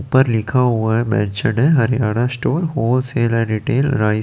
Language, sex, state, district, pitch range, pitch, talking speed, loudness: Hindi, male, Chandigarh, Chandigarh, 110-130 Hz, 120 Hz, 155 wpm, -17 LUFS